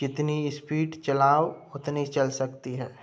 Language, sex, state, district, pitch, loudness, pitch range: Hindi, male, Uttar Pradesh, Budaun, 145 Hz, -27 LUFS, 135-150 Hz